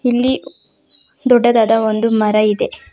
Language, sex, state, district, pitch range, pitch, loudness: Kannada, female, Karnataka, Bangalore, 220-260 Hz, 235 Hz, -15 LUFS